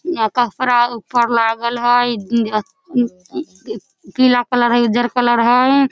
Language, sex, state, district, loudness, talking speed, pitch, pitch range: Maithili, female, Bihar, Samastipur, -16 LUFS, 130 wpm, 240 Hz, 235-250 Hz